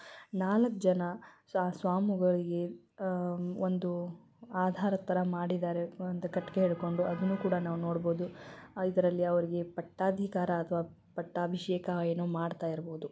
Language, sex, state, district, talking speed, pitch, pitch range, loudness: Kannada, female, Karnataka, Belgaum, 95 wpm, 180 Hz, 175-185 Hz, -33 LUFS